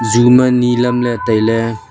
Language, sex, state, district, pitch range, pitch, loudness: Wancho, male, Arunachal Pradesh, Longding, 115-125 Hz, 120 Hz, -13 LUFS